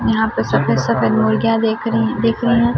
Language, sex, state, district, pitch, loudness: Hindi, male, Chhattisgarh, Raipur, 225 Hz, -16 LUFS